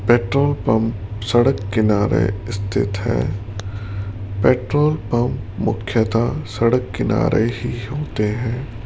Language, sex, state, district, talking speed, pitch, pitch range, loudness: Hindi, male, Rajasthan, Jaipur, 95 wpm, 110 Hz, 100-120 Hz, -20 LUFS